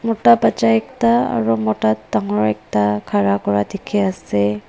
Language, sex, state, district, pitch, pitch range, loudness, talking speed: Nagamese, female, Nagaland, Dimapur, 110 Hz, 105-120 Hz, -17 LUFS, 130 wpm